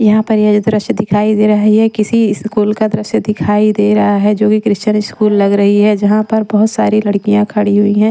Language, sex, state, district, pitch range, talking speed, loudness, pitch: Hindi, female, Punjab, Pathankot, 210-215 Hz, 245 wpm, -12 LUFS, 210 Hz